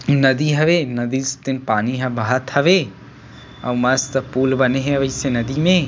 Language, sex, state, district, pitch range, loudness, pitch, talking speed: Chhattisgarhi, male, Chhattisgarh, Sukma, 125-140 Hz, -18 LUFS, 135 Hz, 185 wpm